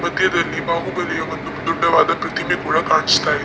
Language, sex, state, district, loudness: Kannada, male, Karnataka, Dakshina Kannada, -18 LUFS